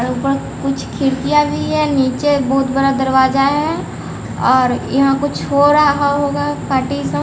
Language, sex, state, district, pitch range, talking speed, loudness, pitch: Hindi, female, Bihar, Patna, 260-285 Hz, 150 wpm, -15 LUFS, 275 Hz